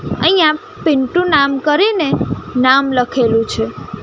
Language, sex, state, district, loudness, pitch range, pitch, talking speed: Gujarati, female, Gujarat, Gandhinagar, -14 LUFS, 250-315 Hz, 280 Hz, 105 wpm